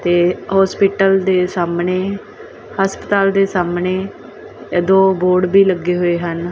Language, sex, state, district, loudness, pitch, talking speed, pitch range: Punjabi, female, Punjab, Kapurthala, -15 LUFS, 185 Hz, 130 wpm, 175-195 Hz